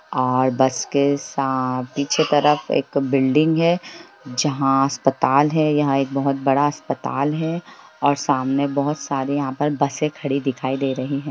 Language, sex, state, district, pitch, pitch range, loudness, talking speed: Hindi, male, Bihar, Lakhisarai, 140 Hz, 135-145 Hz, -20 LUFS, 155 wpm